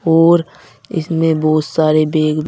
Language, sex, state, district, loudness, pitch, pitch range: Hindi, male, Uttar Pradesh, Saharanpur, -14 LUFS, 160 Hz, 155-165 Hz